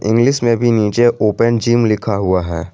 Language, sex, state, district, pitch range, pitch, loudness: Hindi, male, Jharkhand, Garhwa, 105-120 Hz, 115 Hz, -14 LUFS